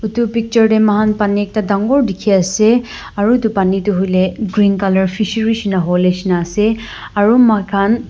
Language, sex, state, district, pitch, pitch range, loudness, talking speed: Nagamese, female, Nagaland, Dimapur, 210 Hz, 195-220 Hz, -14 LUFS, 170 wpm